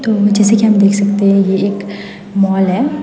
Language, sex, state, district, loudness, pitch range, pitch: Hindi, female, Meghalaya, West Garo Hills, -12 LUFS, 195-205 Hz, 200 Hz